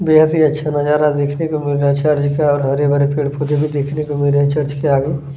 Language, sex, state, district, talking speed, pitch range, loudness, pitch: Hindi, male, Chhattisgarh, Kabirdham, 315 wpm, 145-150 Hz, -16 LUFS, 145 Hz